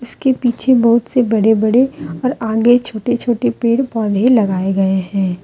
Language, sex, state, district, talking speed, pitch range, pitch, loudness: Hindi, female, Jharkhand, Deoghar, 165 wpm, 215-245 Hz, 235 Hz, -15 LUFS